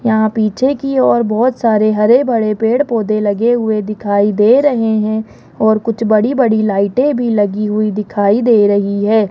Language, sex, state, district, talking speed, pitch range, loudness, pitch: Hindi, female, Rajasthan, Jaipur, 180 wpm, 210-235 Hz, -13 LUFS, 220 Hz